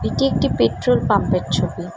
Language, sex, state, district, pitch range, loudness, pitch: Bengali, female, West Bengal, Jalpaiguri, 120-170 Hz, -19 LUFS, 135 Hz